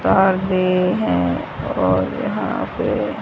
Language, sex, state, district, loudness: Hindi, female, Haryana, Rohtak, -19 LUFS